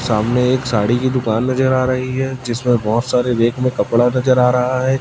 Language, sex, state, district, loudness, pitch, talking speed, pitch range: Hindi, male, Chhattisgarh, Raipur, -16 LUFS, 125 Hz, 225 wpm, 120-130 Hz